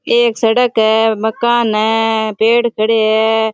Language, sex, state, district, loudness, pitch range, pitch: Rajasthani, female, Rajasthan, Churu, -13 LUFS, 220-235 Hz, 225 Hz